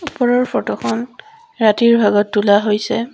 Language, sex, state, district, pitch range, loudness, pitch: Assamese, female, Assam, Sonitpur, 210-250 Hz, -15 LUFS, 230 Hz